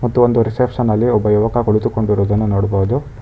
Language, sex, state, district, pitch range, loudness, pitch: Kannada, male, Karnataka, Bangalore, 105-120 Hz, -15 LUFS, 110 Hz